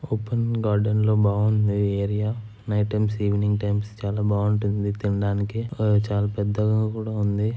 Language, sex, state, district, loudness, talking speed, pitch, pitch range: Telugu, male, Andhra Pradesh, Anantapur, -23 LUFS, 150 wpm, 105 Hz, 100-110 Hz